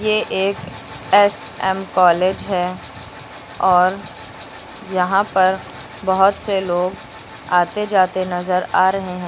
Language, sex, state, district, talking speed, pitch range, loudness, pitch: Hindi, female, Uttar Pradesh, Lucknow, 110 wpm, 180-195 Hz, -17 LUFS, 185 Hz